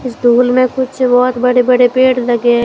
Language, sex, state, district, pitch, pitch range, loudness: Hindi, female, Rajasthan, Jaisalmer, 250 Hz, 245-255 Hz, -11 LUFS